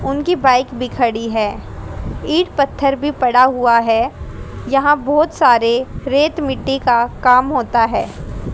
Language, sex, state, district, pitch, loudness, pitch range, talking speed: Hindi, female, Haryana, Rohtak, 260 Hz, -15 LUFS, 240-280 Hz, 140 wpm